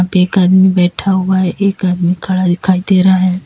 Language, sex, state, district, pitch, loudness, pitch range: Hindi, female, Uttar Pradesh, Lalitpur, 185 Hz, -12 LUFS, 180-190 Hz